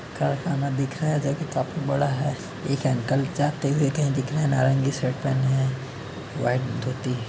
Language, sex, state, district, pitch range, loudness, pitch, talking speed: Hindi, male, Uttar Pradesh, Varanasi, 130-145 Hz, -25 LUFS, 135 Hz, 195 wpm